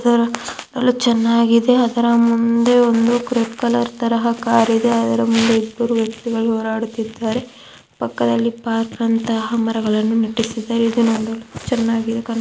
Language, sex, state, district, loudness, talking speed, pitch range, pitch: Kannada, female, Karnataka, Mysore, -17 LUFS, 125 wpm, 225-235 Hz, 230 Hz